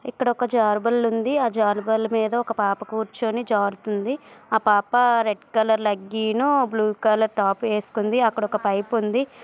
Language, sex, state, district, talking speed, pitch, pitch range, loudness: Telugu, female, Andhra Pradesh, Visakhapatnam, 155 wpm, 220 Hz, 210-240 Hz, -22 LUFS